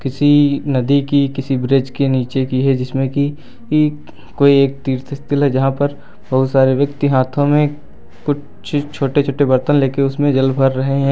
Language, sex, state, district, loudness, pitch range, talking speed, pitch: Hindi, male, Uttar Pradesh, Lucknow, -16 LUFS, 135-145 Hz, 180 wpm, 140 Hz